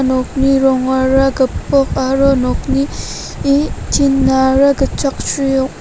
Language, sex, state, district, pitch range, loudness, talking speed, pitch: Garo, female, Meghalaya, North Garo Hills, 265-275 Hz, -14 LUFS, 95 wpm, 270 Hz